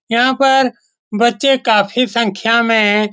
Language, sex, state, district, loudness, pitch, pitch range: Hindi, male, Bihar, Saran, -13 LUFS, 235 Hz, 215-250 Hz